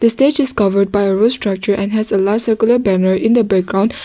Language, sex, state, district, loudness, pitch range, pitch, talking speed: English, female, Nagaland, Kohima, -14 LUFS, 195-230 Hz, 210 Hz, 250 wpm